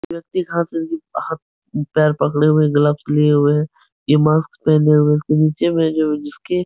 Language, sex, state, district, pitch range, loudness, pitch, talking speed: Hindi, male, Uttar Pradesh, Etah, 150-160 Hz, -17 LUFS, 155 Hz, 180 wpm